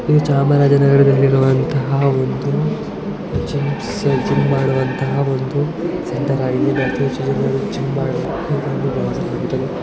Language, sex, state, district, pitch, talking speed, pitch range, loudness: Kannada, male, Karnataka, Chamarajanagar, 135 Hz, 75 wpm, 130-140 Hz, -17 LUFS